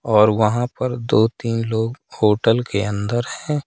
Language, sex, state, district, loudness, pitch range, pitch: Hindi, male, Madhya Pradesh, Katni, -19 LUFS, 110-120 Hz, 115 Hz